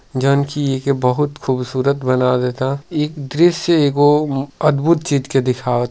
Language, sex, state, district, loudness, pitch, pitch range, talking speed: Bhojpuri, male, Uttar Pradesh, Deoria, -17 LUFS, 140 Hz, 130-150 Hz, 150 wpm